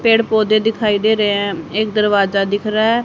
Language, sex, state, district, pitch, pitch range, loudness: Hindi, female, Haryana, Charkhi Dadri, 215 Hz, 205-220 Hz, -16 LUFS